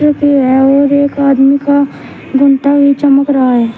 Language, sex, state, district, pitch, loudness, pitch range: Hindi, male, Uttar Pradesh, Shamli, 280 Hz, -9 LUFS, 270-285 Hz